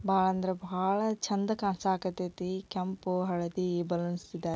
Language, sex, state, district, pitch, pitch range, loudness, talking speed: Kannada, female, Karnataka, Belgaum, 185 Hz, 180-190 Hz, -32 LUFS, 130 wpm